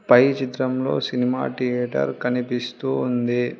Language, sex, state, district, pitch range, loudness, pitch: Telugu, female, Telangana, Hyderabad, 120-130 Hz, -22 LUFS, 125 Hz